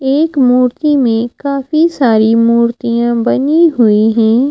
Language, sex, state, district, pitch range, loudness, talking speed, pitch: Hindi, female, Madhya Pradesh, Bhopal, 230-280 Hz, -11 LUFS, 120 wpm, 250 Hz